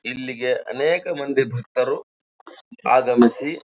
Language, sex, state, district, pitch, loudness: Kannada, male, Karnataka, Bijapur, 135 Hz, -21 LUFS